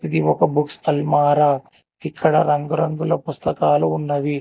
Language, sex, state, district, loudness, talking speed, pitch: Telugu, male, Telangana, Hyderabad, -19 LUFS, 125 wpm, 145 Hz